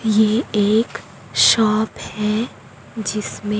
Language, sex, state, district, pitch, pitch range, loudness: Hindi, female, Chhattisgarh, Raipur, 215 Hz, 210-225 Hz, -19 LUFS